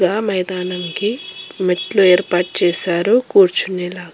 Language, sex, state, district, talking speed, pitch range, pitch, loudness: Telugu, female, Telangana, Hyderabad, 100 wpm, 180-205 Hz, 185 Hz, -16 LUFS